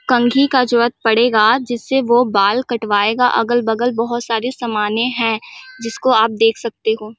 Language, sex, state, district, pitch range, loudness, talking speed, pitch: Hindi, female, Chhattisgarh, Balrampur, 225-245 Hz, -16 LUFS, 175 wpm, 235 Hz